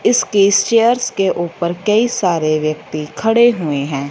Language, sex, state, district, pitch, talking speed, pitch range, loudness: Hindi, female, Punjab, Fazilka, 185 Hz, 160 wpm, 155-230 Hz, -15 LUFS